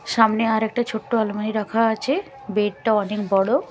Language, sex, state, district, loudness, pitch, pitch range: Bengali, female, Chhattisgarh, Raipur, -21 LUFS, 220 Hz, 210-230 Hz